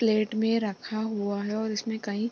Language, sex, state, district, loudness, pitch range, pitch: Hindi, female, Bihar, East Champaran, -29 LUFS, 210-220 Hz, 215 Hz